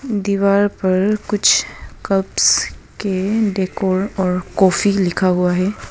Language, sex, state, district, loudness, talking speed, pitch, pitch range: Hindi, female, Arunachal Pradesh, Papum Pare, -17 LUFS, 110 wpm, 195 Hz, 185-205 Hz